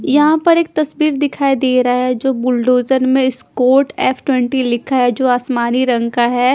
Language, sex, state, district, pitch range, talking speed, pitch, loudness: Hindi, female, Punjab, Fazilka, 250-275 Hz, 185 wpm, 260 Hz, -14 LUFS